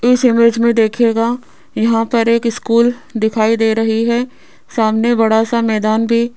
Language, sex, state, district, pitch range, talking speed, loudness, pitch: Hindi, female, Rajasthan, Jaipur, 225-235 Hz, 160 wpm, -14 LUFS, 230 Hz